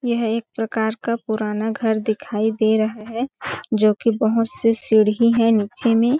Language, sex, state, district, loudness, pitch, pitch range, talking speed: Hindi, female, Chhattisgarh, Balrampur, -20 LUFS, 225 Hz, 220-230 Hz, 185 wpm